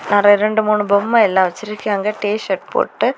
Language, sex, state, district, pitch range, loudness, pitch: Tamil, female, Tamil Nadu, Kanyakumari, 200-215 Hz, -16 LUFS, 210 Hz